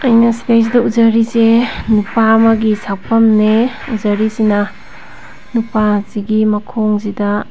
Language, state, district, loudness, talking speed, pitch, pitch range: Manipuri, Manipur, Imphal West, -13 LUFS, 80 wpm, 220 Hz, 210-230 Hz